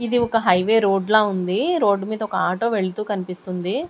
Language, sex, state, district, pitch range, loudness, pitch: Telugu, female, Andhra Pradesh, Sri Satya Sai, 185-220 Hz, -20 LUFS, 205 Hz